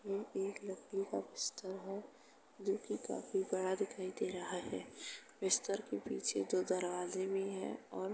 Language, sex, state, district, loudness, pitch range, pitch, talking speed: Hindi, female, Uttar Pradesh, Jalaun, -40 LUFS, 190-210 Hz, 195 Hz, 170 wpm